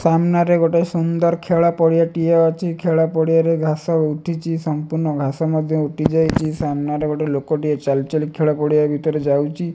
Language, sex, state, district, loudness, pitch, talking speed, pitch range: Odia, male, Odisha, Malkangiri, -18 LUFS, 160 Hz, 170 wpm, 150-165 Hz